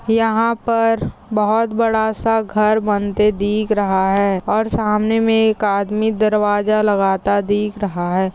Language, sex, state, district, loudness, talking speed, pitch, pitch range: Hindi, male, Maharashtra, Aurangabad, -17 LUFS, 145 wpm, 210 Hz, 205-220 Hz